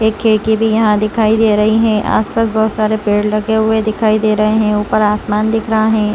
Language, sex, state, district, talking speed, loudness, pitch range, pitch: Hindi, female, Chhattisgarh, Rajnandgaon, 225 wpm, -13 LUFS, 215-220 Hz, 215 Hz